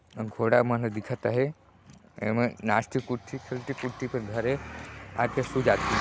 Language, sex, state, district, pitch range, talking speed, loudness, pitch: Hindi, male, Chhattisgarh, Sarguja, 110-130 Hz, 130 wpm, -29 LUFS, 120 Hz